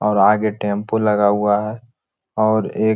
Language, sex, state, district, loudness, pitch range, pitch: Hindi, male, Jharkhand, Sahebganj, -18 LUFS, 105-110 Hz, 105 Hz